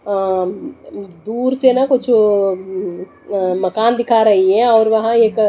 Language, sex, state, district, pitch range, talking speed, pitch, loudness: Hindi, female, Odisha, Nuapada, 190-230 Hz, 155 wpm, 215 Hz, -15 LUFS